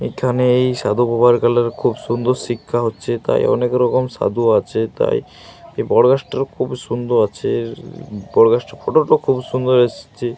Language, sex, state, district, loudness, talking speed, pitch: Bengali, male, Jharkhand, Jamtara, -17 LUFS, 150 wpm, 125 Hz